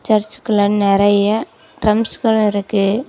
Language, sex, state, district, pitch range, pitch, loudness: Tamil, female, Tamil Nadu, Kanyakumari, 205-220 Hz, 210 Hz, -16 LUFS